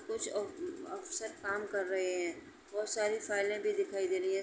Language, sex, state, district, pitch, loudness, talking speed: Hindi, female, Uttar Pradesh, Etah, 210 Hz, -36 LUFS, 205 wpm